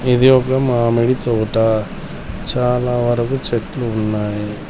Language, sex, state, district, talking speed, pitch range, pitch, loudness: Telugu, male, Telangana, Komaram Bheem, 100 wpm, 110-125 Hz, 120 Hz, -17 LUFS